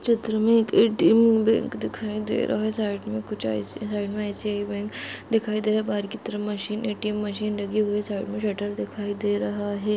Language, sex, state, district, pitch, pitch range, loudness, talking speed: Hindi, female, Rajasthan, Nagaur, 210 Hz, 205-215 Hz, -25 LUFS, 150 wpm